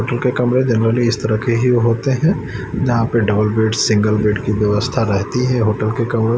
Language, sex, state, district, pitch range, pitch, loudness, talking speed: Hindi, male, Chandigarh, Chandigarh, 110-125 Hz, 115 Hz, -16 LUFS, 215 wpm